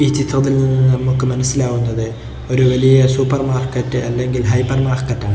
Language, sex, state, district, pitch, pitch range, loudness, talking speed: Malayalam, male, Kerala, Kozhikode, 130 Hz, 125-135 Hz, -16 LUFS, 145 wpm